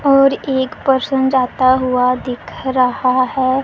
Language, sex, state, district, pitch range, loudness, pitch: Hindi, female, Punjab, Pathankot, 255-265 Hz, -15 LUFS, 260 Hz